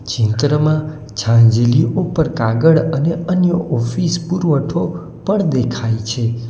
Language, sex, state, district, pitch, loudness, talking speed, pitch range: Gujarati, male, Gujarat, Valsad, 145 Hz, -16 LUFS, 100 wpm, 115-165 Hz